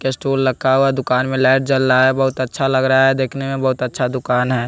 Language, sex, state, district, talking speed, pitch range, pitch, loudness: Hindi, male, Bihar, West Champaran, 270 wpm, 130-135 Hz, 130 Hz, -16 LUFS